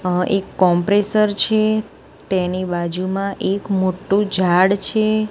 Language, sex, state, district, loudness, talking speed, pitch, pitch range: Gujarati, female, Gujarat, Gandhinagar, -18 LUFS, 115 wpm, 195 Hz, 185-210 Hz